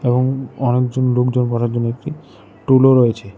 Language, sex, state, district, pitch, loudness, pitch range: Bengali, male, Tripura, West Tripura, 125 Hz, -16 LUFS, 120-130 Hz